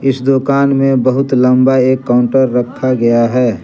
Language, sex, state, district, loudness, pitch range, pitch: Hindi, male, Jharkhand, Garhwa, -12 LUFS, 125-135 Hz, 130 Hz